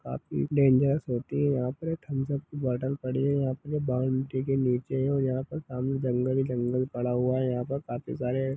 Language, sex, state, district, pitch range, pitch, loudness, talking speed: Hindi, male, Chhattisgarh, Kabirdham, 125-140 Hz, 130 Hz, -28 LUFS, 230 wpm